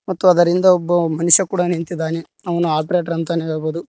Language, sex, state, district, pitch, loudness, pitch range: Kannada, male, Karnataka, Koppal, 170 Hz, -17 LUFS, 165-180 Hz